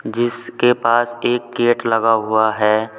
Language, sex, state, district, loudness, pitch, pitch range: Hindi, male, Uttar Pradesh, Saharanpur, -17 LUFS, 115 Hz, 110-120 Hz